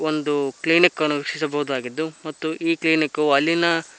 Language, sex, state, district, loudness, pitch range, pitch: Kannada, male, Karnataka, Koppal, -21 LUFS, 145-160 Hz, 155 Hz